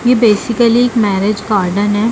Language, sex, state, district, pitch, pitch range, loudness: Hindi, female, Bihar, Jamui, 215 Hz, 205-235 Hz, -13 LUFS